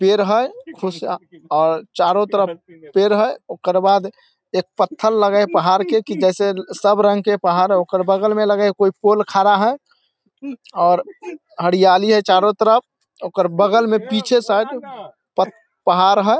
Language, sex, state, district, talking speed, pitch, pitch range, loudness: Maithili, male, Bihar, Samastipur, 165 wpm, 205 Hz, 185-220 Hz, -17 LUFS